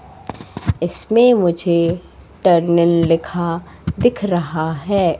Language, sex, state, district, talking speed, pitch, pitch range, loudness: Hindi, female, Madhya Pradesh, Katni, 80 wpm, 170 Hz, 170-185 Hz, -17 LUFS